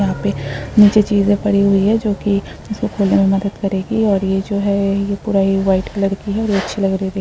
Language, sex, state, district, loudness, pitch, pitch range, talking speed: Hindi, female, Uttar Pradesh, Deoria, -16 LUFS, 200 Hz, 195-205 Hz, 250 wpm